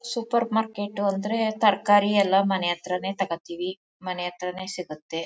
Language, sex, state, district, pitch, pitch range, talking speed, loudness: Kannada, female, Karnataka, Mysore, 195 Hz, 180-205 Hz, 125 wpm, -25 LUFS